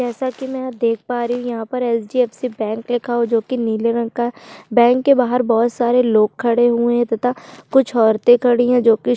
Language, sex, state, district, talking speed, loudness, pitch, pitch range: Hindi, female, Chhattisgarh, Sukma, 250 wpm, -17 LUFS, 240 Hz, 230-250 Hz